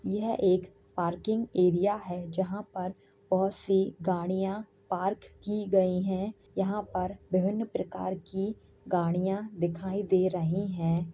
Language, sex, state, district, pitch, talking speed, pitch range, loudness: Hindi, female, Uttar Pradesh, Jyotiba Phule Nagar, 190 Hz, 130 wpm, 180-200 Hz, -30 LUFS